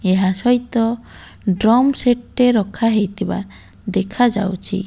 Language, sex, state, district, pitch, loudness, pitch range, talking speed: Odia, female, Odisha, Malkangiri, 215 Hz, -17 LUFS, 195-245 Hz, 100 wpm